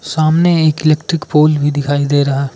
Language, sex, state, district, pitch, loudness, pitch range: Hindi, male, Arunachal Pradesh, Lower Dibang Valley, 150 Hz, -13 LUFS, 145-155 Hz